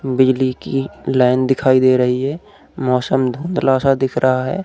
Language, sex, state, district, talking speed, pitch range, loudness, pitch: Hindi, male, Uttar Pradesh, Budaun, 165 wpm, 130-135 Hz, -16 LUFS, 130 Hz